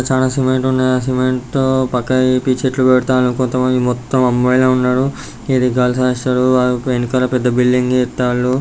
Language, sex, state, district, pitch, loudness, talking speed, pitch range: Telugu, male, Telangana, Karimnagar, 125 Hz, -15 LUFS, 160 wpm, 125-130 Hz